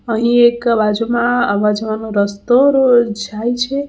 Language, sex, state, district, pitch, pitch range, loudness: Gujarati, female, Gujarat, Valsad, 235 Hz, 215-245 Hz, -14 LUFS